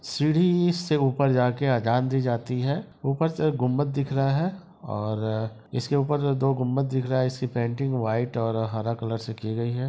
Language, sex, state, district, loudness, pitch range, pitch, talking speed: Hindi, male, Bihar, East Champaran, -25 LUFS, 115-140 Hz, 130 Hz, 200 wpm